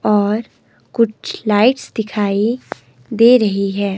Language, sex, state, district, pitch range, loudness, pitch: Hindi, female, Himachal Pradesh, Shimla, 205-230 Hz, -16 LUFS, 215 Hz